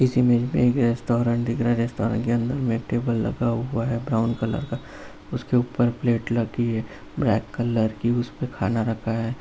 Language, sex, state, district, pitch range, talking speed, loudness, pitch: Hindi, male, Uttar Pradesh, Jalaun, 115-120 Hz, 205 wpm, -24 LUFS, 120 Hz